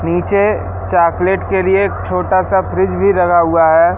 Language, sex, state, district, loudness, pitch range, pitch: Hindi, male, Madhya Pradesh, Katni, -13 LUFS, 170-190 Hz, 180 Hz